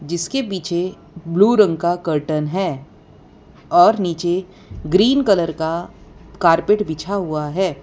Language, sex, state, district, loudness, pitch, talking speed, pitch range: Hindi, female, Gujarat, Valsad, -18 LUFS, 175 Hz, 120 wpm, 165-195 Hz